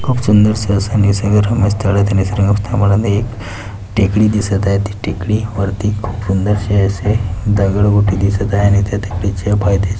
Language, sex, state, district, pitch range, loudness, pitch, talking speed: Marathi, male, Maharashtra, Pune, 100-105 Hz, -15 LUFS, 100 Hz, 155 wpm